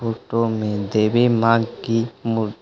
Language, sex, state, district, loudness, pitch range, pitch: Hindi, male, Uttar Pradesh, Lucknow, -20 LUFS, 110-115 Hz, 115 Hz